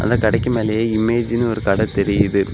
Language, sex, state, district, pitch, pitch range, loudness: Tamil, male, Tamil Nadu, Kanyakumari, 110 Hz, 100-115 Hz, -18 LUFS